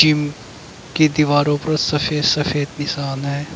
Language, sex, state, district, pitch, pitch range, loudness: Hindi, male, Uttar Pradesh, Saharanpur, 150 Hz, 145-155 Hz, -18 LUFS